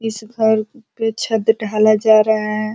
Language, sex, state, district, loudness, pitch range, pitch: Hindi, female, Uttar Pradesh, Ghazipur, -16 LUFS, 215-225 Hz, 220 Hz